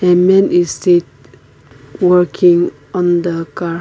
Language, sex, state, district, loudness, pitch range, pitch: English, female, Nagaland, Kohima, -13 LUFS, 145-180 Hz, 175 Hz